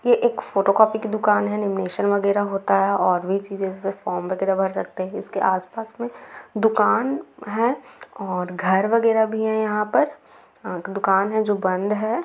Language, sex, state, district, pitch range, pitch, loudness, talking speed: Hindi, female, Bihar, Gaya, 190-220 Hz, 200 Hz, -22 LUFS, 190 wpm